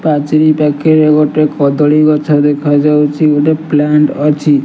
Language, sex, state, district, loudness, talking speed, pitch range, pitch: Odia, male, Odisha, Nuapada, -10 LUFS, 115 wpm, 145-155 Hz, 150 Hz